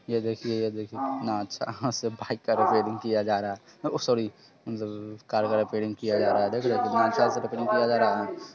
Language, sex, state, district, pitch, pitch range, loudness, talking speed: Hindi, male, Bihar, Sitamarhi, 110 Hz, 105-115 Hz, -27 LUFS, 240 wpm